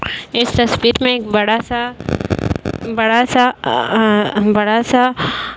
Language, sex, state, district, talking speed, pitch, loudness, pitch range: Hindi, female, Uttar Pradesh, Varanasi, 130 wpm, 230 Hz, -15 LUFS, 215-245 Hz